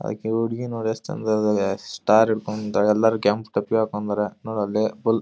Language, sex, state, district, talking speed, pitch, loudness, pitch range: Kannada, male, Karnataka, Dharwad, 185 wpm, 110 Hz, -23 LUFS, 105-110 Hz